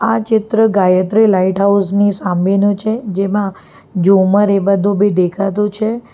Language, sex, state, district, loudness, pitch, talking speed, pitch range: Gujarati, female, Gujarat, Valsad, -14 LUFS, 200 Hz, 145 wpm, 190-210 Hz